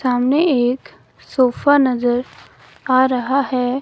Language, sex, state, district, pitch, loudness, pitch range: Hindi, female, Himachal Pradesh, Shimla, 255 Hz, -17 LUFS, 245-270 Hz